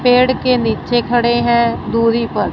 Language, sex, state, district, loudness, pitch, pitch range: Hindi, female, Punjab, Fazilka, -15 LUFS, 235 Hz, 230-245 Hz